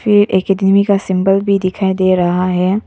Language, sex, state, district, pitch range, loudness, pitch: Hindi, female, Arunachal Pradesh, Papum Pare, 185-200 Hz, -13 LUFS, 195 Hz